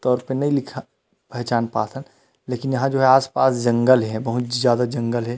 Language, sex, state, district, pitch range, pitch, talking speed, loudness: Chhattisgarhi, male, Chhattisgarh, Rajnandgaon, 120-135 Hz, 125 Hz, 200 wpm, -20 LUFS